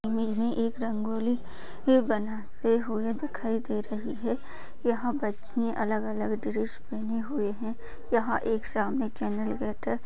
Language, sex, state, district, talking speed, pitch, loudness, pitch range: Hindi, female, Uttar Pradesh, Jyotiba Phule Nagar, 145 wpm, 225 Hz, -30 LUFS, 215-235 Hz